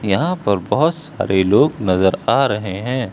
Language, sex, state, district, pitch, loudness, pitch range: Hindi, male, Uttar Pradesh, Lucknow, 105 Hz, -17 LUFS, 95-145 Hz